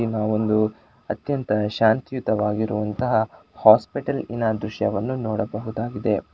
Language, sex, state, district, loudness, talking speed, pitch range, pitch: Kannada, male, Karnataka, Shimoga, -23 LUFS, 225 wpm, 105-115 Hz, 110 Hz